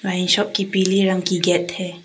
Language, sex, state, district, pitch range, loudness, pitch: Hindi, female, Arunachal Pradesh, Papum Pare, 180-195 Hz, -19 LUFS, 185 Hz